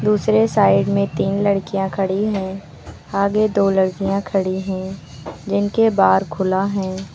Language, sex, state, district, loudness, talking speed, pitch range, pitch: Hindi, female, Uttar Pradesh, Lucknow, -18 LUFS, 135 wpm, 185-200 Hz, 195 Hz